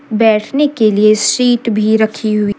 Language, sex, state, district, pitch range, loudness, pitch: Hindi, female, Jharkhand, Deoghar, 215-235 Hz, -12 LUFS, 220 Hz